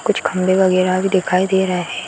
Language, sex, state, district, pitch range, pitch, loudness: Hindi, female, Bihar, Gaya, 185-190 Hz, 185 Hz, -16 LUFS